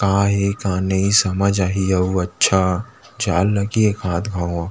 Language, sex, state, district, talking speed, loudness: Chhattisgarhi, male, Chhattisgarh, Rajnandgaon, 190 wpm, -18 LUFS